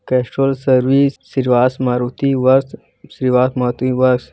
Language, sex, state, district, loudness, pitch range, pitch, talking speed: Hindi, male, Chhattisgarh, Bilaspur, -16 LUFS, 125-135 Hz, 130 Hz, 55 wpm